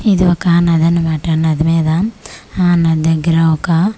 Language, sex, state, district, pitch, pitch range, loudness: Telugu, female, Andhra Pradesh, Manyam, 165 Hz, 160-175 Hz, -13 LUFS